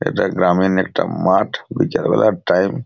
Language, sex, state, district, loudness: Bengali, male, West Bengal, Purulia, -17 LUFS